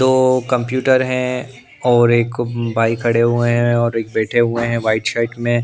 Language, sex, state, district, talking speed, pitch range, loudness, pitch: Hindi, male, Punjab, Pathankot, 190 wpm, 115-125 Hz, -17 LUFS, 120 Hz